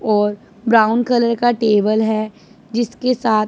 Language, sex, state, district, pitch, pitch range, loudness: Hindi, female, Punjab, Pathankot, 220 Hz, 215-235 Hz, -17 LUFS